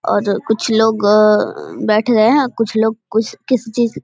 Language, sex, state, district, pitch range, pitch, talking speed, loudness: Hindi, female, Bihar, Vaishali, 215-230 Hz, 220 Hz, 210 wpm, -15 LUFS